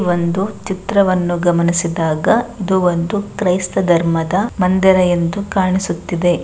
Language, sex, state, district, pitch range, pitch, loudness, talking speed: Kannada, female, Karnataka, Bellary, 175-195 Hz, 180 Hz, -16 LUFS, 105 wpm